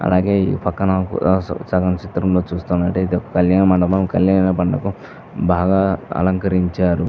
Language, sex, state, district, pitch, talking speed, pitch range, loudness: Telugu, male, Andhra Pradesh, Visakhapatnam, 90 Hz, 125 wpm, 90-95 Hz, -18 LUFS